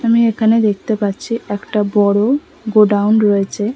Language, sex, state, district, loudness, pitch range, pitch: Bengali, female, West Bengal, Kolkata, -15 LUFS, 205-230 Hz, 215 Hz